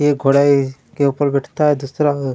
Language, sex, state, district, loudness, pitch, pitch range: Hindi, male, Chhattisgarh, Kabirdham, -16 LUFS, 140 Hz, 135-145 Hz